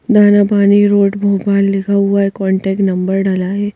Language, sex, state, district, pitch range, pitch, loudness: Hindi, female, Madhya Pradesh, Bhopal, 195-205 Hz, 200 Hz, -13 LUFS